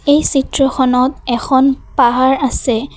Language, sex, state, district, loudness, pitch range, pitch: Assamese, female, Assam, Kamrup Metropolitan, -14 LUFS, 250-275 Hz, 265 Hz